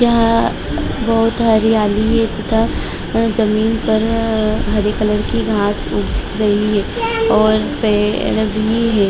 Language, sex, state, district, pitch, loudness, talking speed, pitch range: Hindi, female, Bihar, Sitamarhi, 220 Hz, -16 LUFS, 125 wpm, 210-225 Hz